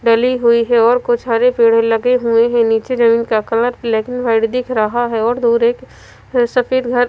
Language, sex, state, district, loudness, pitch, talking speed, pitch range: Hindi, female, Punjab, Fazilka, -14 LUFS, 235 Hz, 210 wpm, 230-245 Hz